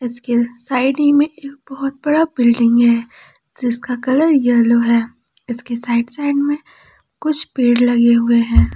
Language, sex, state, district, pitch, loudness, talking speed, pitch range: Hindi, female, Jharkhand, Palamu, 245 Hz, -16 LUFS, 150 wpm, 235-285 Hz